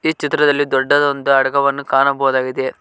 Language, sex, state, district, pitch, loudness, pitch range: Kannada, male, Karnataka, Koppal, 140 Hz, -15 LUFS, 135-145 Hz